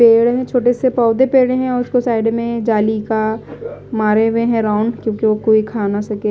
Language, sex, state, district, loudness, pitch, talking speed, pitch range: Hindi, female, Delhi, New Delhi, -16 LUFS, 230 Hz, 200 wpm, 220-245 Hz